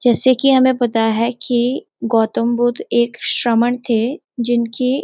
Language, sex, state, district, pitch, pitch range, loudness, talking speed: Hindi, female, Uttarakhand, Uttarkashi, 240 Hz, 235-255 Hz, -16 LUFS, 155 wpm